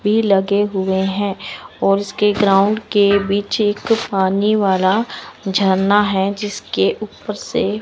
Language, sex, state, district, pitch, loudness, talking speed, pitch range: Hindi, female, Chandigarh, Chandigarh, 200 Hz, -17 LUFS, 130 wpm, 195-210 Hz